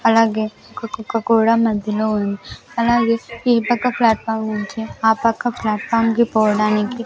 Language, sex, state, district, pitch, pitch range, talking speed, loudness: Telugu, female, Andhra Pradesh, Sri Satya Sai, 225 Hz, 215-230 Hz, 145 wpm, -18 LUFS